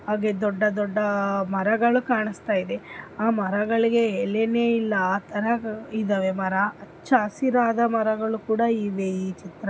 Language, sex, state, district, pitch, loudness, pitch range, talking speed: Kannada, female, Karnataka, Dharwad, 215 Hz, -24 LUFS, 200-230 Hz, 115 wpm